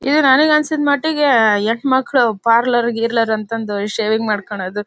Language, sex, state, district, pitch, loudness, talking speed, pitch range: Kannada, female, Karnataka, Bellary, 230 Hz, -16 LUFS, 125 wpm, 215-275 Hz